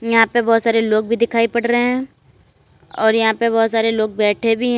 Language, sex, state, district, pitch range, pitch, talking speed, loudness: Hindi, female, Uttar Pradesh, Lalitpur, 225-235 Hz, 230 Hz, 240 wpm, -16 LUFS